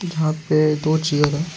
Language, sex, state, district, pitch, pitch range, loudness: Hindi, male, Jharkhand, Ranchi, 155 Hz, 150-160 Hz, -19 LUFS